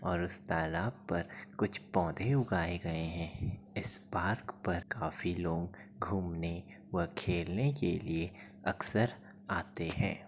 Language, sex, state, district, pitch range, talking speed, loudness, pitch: Hindi, male, Uttar Pradesh, Etah, 85-100 Hz, 135 wpm, -36 LUFS, 90 Hz